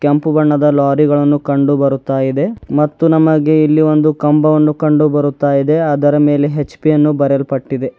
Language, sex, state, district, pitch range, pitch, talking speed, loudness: Kannada, male, Karnataka, Bidar, 140-150 Hz, 145 Hz, 120 wpm, -13 LUFS